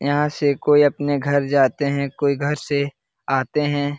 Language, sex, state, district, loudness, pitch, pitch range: Hindi, male, Uttar Pradesh, Jalaun, -20 LUFS, 145 Hz, 140-145 Hz